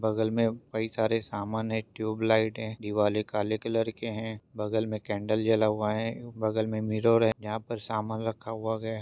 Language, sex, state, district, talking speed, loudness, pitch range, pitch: Hindi, male, Maharashtra, Chandrapur, 195 wpm, -29 LUFS, 110-115 Hz, 110 Hz